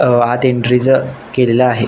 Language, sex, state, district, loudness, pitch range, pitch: Marathi, male, Maharashtra, Nagpur, -13 LUFS, 120-125 Hz, 125 Hz